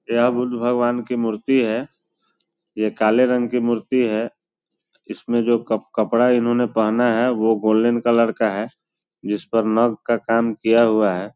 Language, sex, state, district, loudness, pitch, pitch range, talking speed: Hindi, male, Bihar, Muzaffarpur, -19 LUFS, 115 Hz, 110-120 Hz, 175 wpm